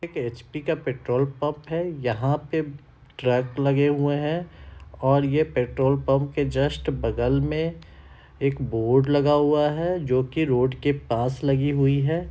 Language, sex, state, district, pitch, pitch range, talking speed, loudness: Hindi, male, Bihar, Samastipur, 140 Hz, 125-150 Hz, 160 wpm, -24 LUFS